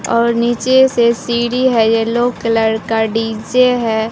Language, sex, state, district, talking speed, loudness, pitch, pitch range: Hindi, female, Bihar, Katihar, 145 wpm, -14 LUFS, 235 Hz, 225-240 Hz